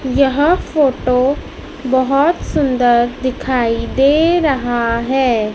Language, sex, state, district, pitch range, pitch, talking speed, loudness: Hindi, female, Madhya Pradesh, Dhar, 245-285 Hz, 260 Hz, 85 wpm, -15 LUFS